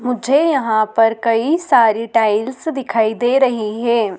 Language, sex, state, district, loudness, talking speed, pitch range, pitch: Hindi, female, Madhya Pradesh, Dhar, -16 LUFS, 145 wpm, 225-260 Hz, 235 Hz